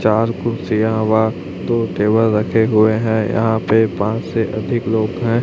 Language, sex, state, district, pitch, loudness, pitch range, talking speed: Hindi, male, Chhattisgarh, Raipur, 110 Hz, -17 LUFS, 110-115 Hz, 165 wpm